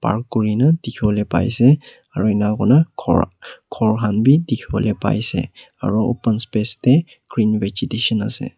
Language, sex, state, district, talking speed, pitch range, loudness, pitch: Nagamese, male, Nagaland, Kohima, 170 wpm, 105-130 Hz, -18 LUFS, 115 Hz